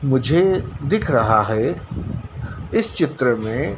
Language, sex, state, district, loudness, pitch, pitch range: Hindi, male, Madhya Pradesh, Dhar, -19 LUFS, 135 Hz, 115-160 Hz